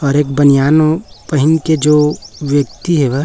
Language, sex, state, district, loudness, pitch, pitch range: Hindi, male, Chhattisgarh, Raipur, -13 LUFS, 145 Hz, 140-155 Hz